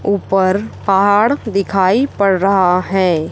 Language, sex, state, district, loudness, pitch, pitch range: Hindi, female, Chhattisgarh, Raipur, -14 LUFS, 195 Hz, 185-200 Hz